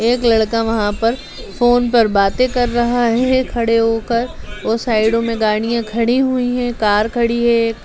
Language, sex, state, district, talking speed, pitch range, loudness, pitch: Hindi, female, Bihar, Gaya, 175 wpm, 225-240 Hz, -16 LUFS, 235 Hz